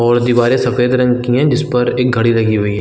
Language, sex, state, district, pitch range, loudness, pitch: Hindi, male, Chhattisgarh, Rajnandgaon, 120-125 Hz, -13 LUFS, 125 Hz